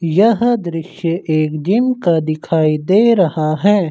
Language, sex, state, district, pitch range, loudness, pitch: Hindi, male, Uttar Pradesh, Lucknow, 155-205 Hz, -15 LUFS, 170 Hz